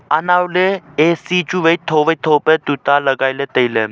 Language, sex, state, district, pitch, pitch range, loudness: Wancho, male, Arunachal Pradesh, Longding, 155 Hz, 140-180 Hz, -15 LUFS